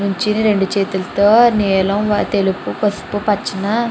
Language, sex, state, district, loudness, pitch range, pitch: Telugu, female, Andhra Pradesh, Chittoor, -16 LUFS, 195-210 Hz, 205 Hz